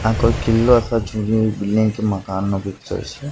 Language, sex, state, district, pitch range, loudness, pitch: Gujarati, male, Gujarat, Gandhinagar, 100-115 Hz, -19 LUFS, 110 Hz